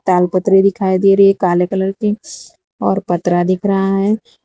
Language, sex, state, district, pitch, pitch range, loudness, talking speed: Hindi, female, Gujarat, Valsad, 195 Hz, 185-195 Hz, -14 LUFS, 175 wpm